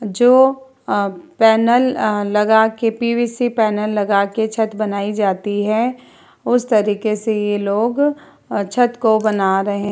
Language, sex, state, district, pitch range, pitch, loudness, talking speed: Hindi, female, Uttar Pradesh, Etah, 205-240 Hz, 220 Hz, -17 LUFS, 120 wpm